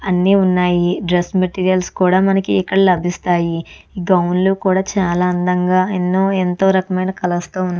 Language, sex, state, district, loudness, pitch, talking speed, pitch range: Telugu, female, Andhra Pradesh, Chittoor, -16 LUFS, 185 Hz, 130 wpm, 180-190 Hz